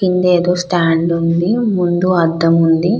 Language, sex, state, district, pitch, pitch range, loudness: Telugu, female, Andhra Pradesh, Krishna, 175 Hz, 165-180 Hz, -14 LUFS